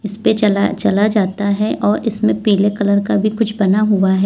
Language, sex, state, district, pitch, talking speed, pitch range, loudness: Hindi, female, Uttar Pradesh, Lalitpur, 205 Hz, 210 wpm, 200-215 Hz, -15 LUFS